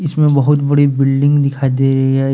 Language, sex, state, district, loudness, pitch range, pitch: Hindi, male, Jharkhand, Deoghar, -13 LUFS, 135-145 Hz, 140 Hz